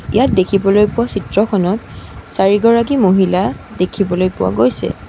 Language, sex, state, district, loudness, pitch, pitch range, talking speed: Assamese, female, Assam, Sonitpur, -14 LUFS, 195 Hz, 185-210 Hz, 105 wpm